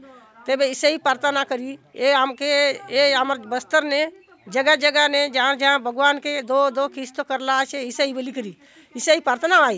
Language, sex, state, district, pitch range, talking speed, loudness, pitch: Halbi, female, Chhattisgarh, Bastar, 265-290 Hz, 195 wpm, -20 LUFS, 275 Hz